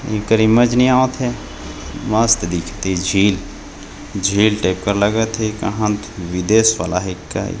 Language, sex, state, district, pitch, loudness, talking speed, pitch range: Hindi, male, Chhattisgarh, Jashpur, 105 Hz, -17 LUFS, 135 wpm, 90-110 Hz